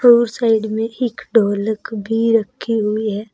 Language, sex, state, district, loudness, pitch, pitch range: Hindi, female, Uttar Pradesh, Saharanpur, -18 LUFS, 225 Hz, 215-230 Hz